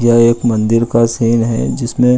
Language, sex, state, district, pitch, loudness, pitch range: Hindi, male, Bihar, Gaya, 115 Hz, -13 LUFS, 115-120 Hz